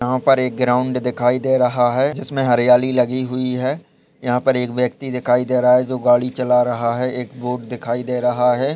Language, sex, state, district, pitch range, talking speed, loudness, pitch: Hindi, male, Chhattisgarh, Raigarh, 125-130 Hz, 220 wpm, -18 LUFS, 125 Hz